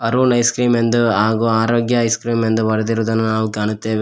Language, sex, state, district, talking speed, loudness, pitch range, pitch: Kannada, male, Karnataka, Koppal, 180 wpm, -16 LUFS, 110-120 Hz, 115 Hz